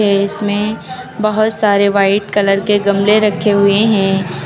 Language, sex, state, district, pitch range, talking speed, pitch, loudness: Hindi, female, Uttar Pradesh, Lucknow, 200-210 Hz, 150 wpm, 205 Hz, -13 LUFS